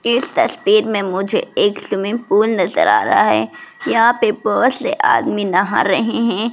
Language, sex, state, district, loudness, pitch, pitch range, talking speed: Hindi, female, Rajasthan, Jaipur, -16 LUFS, 215 Hz, 200-235 Hz, 175 wpm